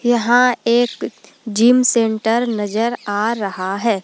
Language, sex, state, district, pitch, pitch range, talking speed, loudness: Hindi, female, Jharkhand, Palamu, 230 Hz, 215-240 Hz, 120 wpm, -17 LUFS